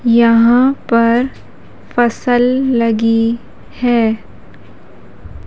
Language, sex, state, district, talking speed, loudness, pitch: Hindi, female, Madhya Pradesh, Umaria, 55 wpm, -13 LUFS, 230 Hz